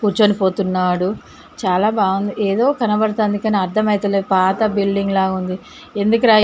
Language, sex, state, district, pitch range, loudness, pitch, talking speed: Telugu, female, Telangana, Karimnagar, 190-215 Hz, -17 LUFS, 205 Hz, 120 wpm